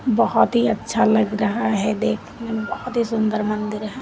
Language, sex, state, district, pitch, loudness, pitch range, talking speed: Hindi, female, Uttar Pradesh, Lalitpur, 225 Hz, -21 LUFS, 215-235 Hz, 195 wpm